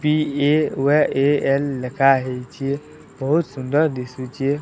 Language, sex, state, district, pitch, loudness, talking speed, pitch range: Odia, male, Odisha, Sambalpur, 140 Hz, -20 LUFS, 115 wpm, 130-150 Hz